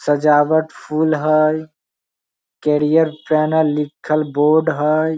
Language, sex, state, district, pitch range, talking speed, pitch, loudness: Maithili, male, Bihar, Samastipur, 150-160 Hz, 95 wpm, 155 Hz, -17 LUFS